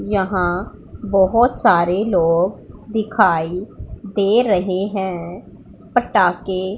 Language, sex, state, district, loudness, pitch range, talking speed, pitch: Hindi, female, Punjab, Pathankot, -18 LUFS, 180-205 Hz, 80 wpm, 190 Hz